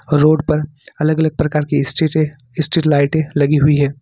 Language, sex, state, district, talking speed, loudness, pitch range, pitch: Hindi, male, Jharkhand, Ranchi, 195 wpm, -15 LUFS, 145-155 Hz, 150 Hz